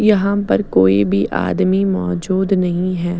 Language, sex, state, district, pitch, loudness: Hindi, female, Chandigarh, Chandigarh, 175 Hz, -16 LUFS